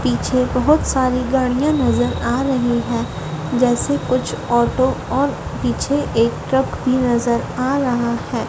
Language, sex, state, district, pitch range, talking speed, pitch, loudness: Hindi, female, Madhya Pradesh, Dhar, 235-260 Hz, 140 wpm, 250 Hz, -18 LUFS